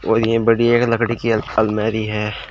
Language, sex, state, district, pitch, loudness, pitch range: Hindi, male, Uttar Pradesh, Shamli, 115 Hz, -18 LUFS, 105-115 Hz